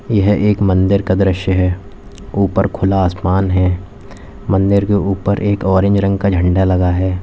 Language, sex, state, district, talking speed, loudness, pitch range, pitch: Hindi, male, Uttar Pradesh, Lalitpur, 165 wpm, -15 LUFS, 95-100 Hz, 95 Hz